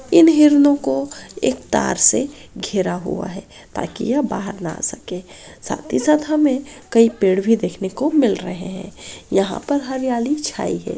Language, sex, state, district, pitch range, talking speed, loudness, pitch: Hindi, female, Bihar, Kishanganj, 190-295 Hz, 175 wpm, -18 LUFS, 260 Hz